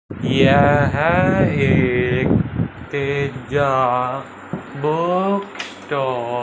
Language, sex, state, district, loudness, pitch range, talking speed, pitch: Hindi, male, Punjab, Fazilka, -18 LUFS, 130-150 Hz, 55 wpm, 140 Hz